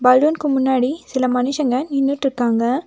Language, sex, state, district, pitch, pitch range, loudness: Tamil, female, Tamil Nadu, Nilgiris, 265 Hz, 250-280 Hz, -18 LUFS